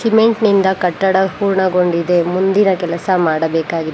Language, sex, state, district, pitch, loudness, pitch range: Kannada, female, Karnataka, Bangalore, 185 Hz, -15 LUFS, 170-195 Hz